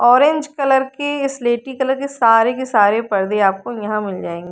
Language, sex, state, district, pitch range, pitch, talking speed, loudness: Hindi, female, Haryana, Rohtak, 210-270 Hz, 240 Hz, 175 wpm, -17 LUFS